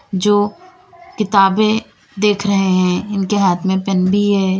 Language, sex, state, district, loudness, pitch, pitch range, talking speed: Hindi, female, Uttar Pradesh, Lalitpur, -15 LUFS, 200 Hz, 190-210 Hz, 145 wpm